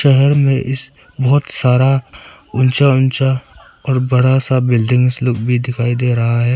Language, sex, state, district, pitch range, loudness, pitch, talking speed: Hindi, male, Arunachal Pradesh, Papum Pare, 125-135 Hz, -14 LUFS, 130 Hz, 155 wpm